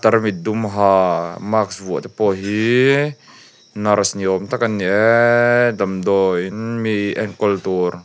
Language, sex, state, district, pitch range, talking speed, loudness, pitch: Mizo, male, Mizoram, Aizawl, 95-115 Hz, 150 wpm, -17 LUFS, 105 Hz